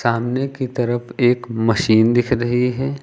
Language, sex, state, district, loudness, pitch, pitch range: Hindi, male, Uttar Pradesh, Lucknow, -18 LUFS, 120 Hz, 120-125 Hz